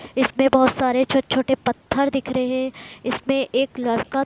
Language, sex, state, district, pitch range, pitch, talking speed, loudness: Hindi, female, Bihar, Muzaffarpur, 255-270 Hz, 260 Hz, 170 wpm, -21 LUFS